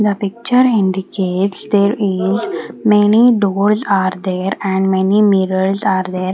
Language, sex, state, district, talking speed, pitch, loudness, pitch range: English, female, Haryana, Jhajjar, 135 wpm, 195 Hz, -15 LUFS, 190-210 Hz